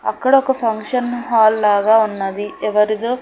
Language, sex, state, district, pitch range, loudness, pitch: Telugu, female, Andhra Pradesh, Annamaya, 210-245 Hz, -16 LUFS, 220 Hz